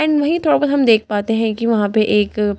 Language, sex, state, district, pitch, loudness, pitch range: Hindi, female, Delhi, New Delhi, 225 Hz, -16 LUFS, 210-285 Hz